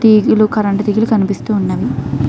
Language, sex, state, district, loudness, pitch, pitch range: Telugu, female, Andhra Pradesh, Krishna, -14 LUFS, 210 Hz, 190-215 Hz